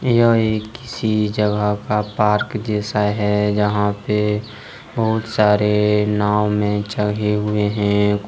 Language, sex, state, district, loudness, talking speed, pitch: Hindi, male, Jharkhand, Ranchi, -18 LUFS, 115 wpm, 105 Hz